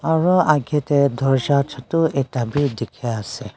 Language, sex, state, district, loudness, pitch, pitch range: Nagamese, female, Nagaland, Kohima, -19 LUFS, 140 Hz, 130-150 Hz